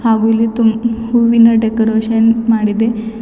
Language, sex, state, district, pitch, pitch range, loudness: Kannada, female, Karnataka, Bidar, 225 Hz, 225-230 Hz, -13 LUFS